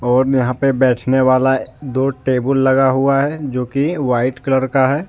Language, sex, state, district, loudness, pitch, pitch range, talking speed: Hindi, male, Jharkhand, Deoghar, -16 LUFS, 130 Hz, 130-135 Hz, 175 wpm